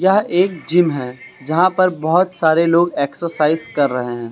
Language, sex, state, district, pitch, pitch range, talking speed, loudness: Hindi, male, Uttar Pradesh, Lucknow, 165 Hz, 140-180 Hz, 180 wpm, -16 LUFS